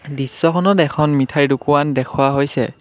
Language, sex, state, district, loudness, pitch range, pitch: Assamese, male, Assam, Kamrup Metropolitan, -16 LUFS, 135-150 Hz, 140 Hz